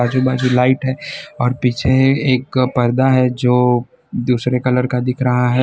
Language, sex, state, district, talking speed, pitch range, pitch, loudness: Hindi, male, Gujarat, Valsad, 170 wpm, 125-130 Hz, 125 Hz, -16 LUFS